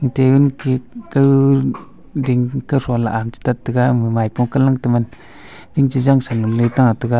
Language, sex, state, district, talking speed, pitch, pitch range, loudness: Wancho, male, Arunachal Pradesh, Longding, 160 wpm, 125 Hz, 120-135 Hz, -16 LUFS